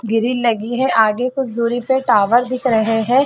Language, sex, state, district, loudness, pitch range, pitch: Hindi, female, Chhattisgarh, Bastar, -16 LUFS, 225-255 Hz, 240 Hz